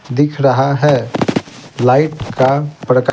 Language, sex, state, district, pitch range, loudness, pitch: Hindi, male, Bihar, Patna, 130-145 Hz, -14 LUFS, 135 Hz